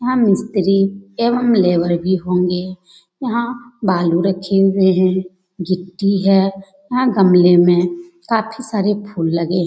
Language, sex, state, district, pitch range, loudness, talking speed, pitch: Hindi, female, Bihar, Jamui, 180-225 Hz, -16 LUFS, 130 wpm, 195 Hz